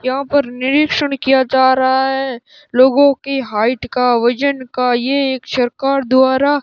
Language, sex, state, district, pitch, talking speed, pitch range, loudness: Hindi, male, Rajasthan, Bikaner, 265 Hz, 165 wpm, 255-280 Hz, -15 LUFS